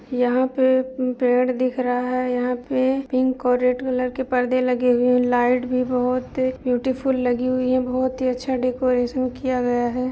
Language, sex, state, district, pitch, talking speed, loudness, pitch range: Hindi, female, Uttar Pradesh, Budaun, 255 Hz, 190 wpm, -21 LUFS, 250-255 Hz